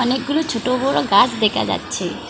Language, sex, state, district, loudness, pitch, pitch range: Bengali, female, West Bengal, Alipurduar, -18 LUFS, 250 Hz, 235-275 Hz